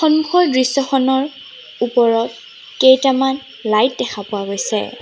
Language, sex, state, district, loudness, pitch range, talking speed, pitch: Assamese, female, Assam, Sonitpur, -16 LUFS, 230-275 Hz, 95 wpm, 260 Hz